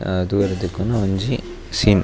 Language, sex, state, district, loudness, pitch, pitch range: Tulu, male, Karnataka, Dakshina Kannada, -21 LUFS, 100 Hz, 95-105 Hz